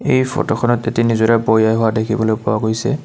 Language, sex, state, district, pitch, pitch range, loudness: Assamese, male, Assam, Kamrup Metropolitan, 115 Hz, 110-120 Hz, -16 LUFS